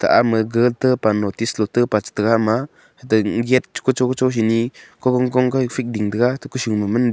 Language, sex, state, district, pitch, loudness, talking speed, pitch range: Wancho, male, Arunachal Pradesh, Longding, 120 Hz, -19 LUFS, 245 wpm, 110-130 Hz